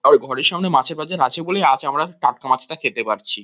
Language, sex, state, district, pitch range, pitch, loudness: Bengali, male, West Bengal, Kolkata, 130-175 Hz, 155 Hz, -18 LUFS